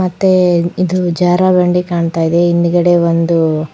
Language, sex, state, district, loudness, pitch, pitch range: Kannada, female, Karnataka, Koppal, -12 LUFS, 175 Hz, 170-180 Hz